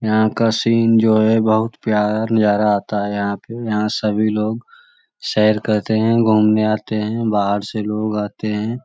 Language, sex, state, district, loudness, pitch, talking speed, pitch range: Magahi, male, Bihar, Lakhisarai, -17 LUFS, 110 Hz, 175 wpm, 105-110 Hz